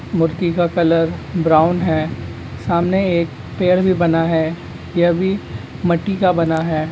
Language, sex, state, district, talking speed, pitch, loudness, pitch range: Hindi, male, West Bengal, Kolkata, 145 wpm, 170 Hz, -17 LUFS, 160-180 Hz